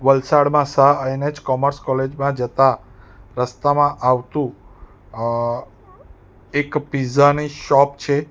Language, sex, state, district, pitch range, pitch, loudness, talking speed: Gujarati, male, Gujarat, Valsad, 125-145 Hz, 135 Hz, -18 LUFS, 110 wpm